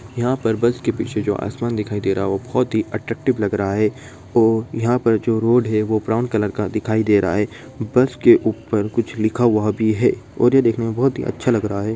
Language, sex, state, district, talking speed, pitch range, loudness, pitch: Hindi, male, Bihar, Begusarai, 245 wpm, 105-120 Hz, -19 LUFS, 110 Hz